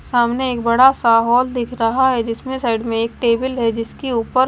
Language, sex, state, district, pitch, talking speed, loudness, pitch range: Hindi, female, Maharashtra, Washim, 240 Hz, 200 wpm, -17 LUFS, 230-255 Hz